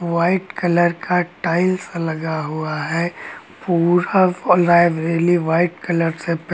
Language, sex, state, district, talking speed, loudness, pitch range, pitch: Hindi, male, Uttar Pradesh, Lucknow, 120 wpm, -18 LUFS, 165-175 Hz, 170 Hz